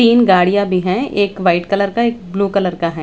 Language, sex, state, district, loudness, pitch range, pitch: Hindi, female, Chandigarh, Chandigarh, -15 LUFS, 180-205 Hz, 195 Hz